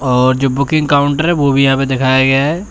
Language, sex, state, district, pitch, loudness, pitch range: Hindi, male, Uttar Pradesh, Shamli, 135 Hz, -12 LUFS, 130-145 Hz